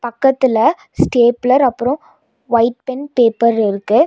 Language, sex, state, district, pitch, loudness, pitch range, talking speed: Tamil, female, Tamil Nadu, Nilgiris, 245 Hz, -15 LUFS, 230-265 Hz, 105 wpm